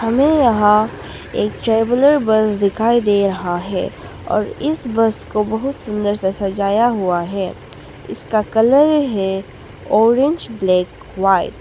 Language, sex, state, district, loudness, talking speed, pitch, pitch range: Hindi, female, Arunachal Pradesh, Papum Pare, -17 LUFS, 135 wpm, 215 Hz, 195-235 Hz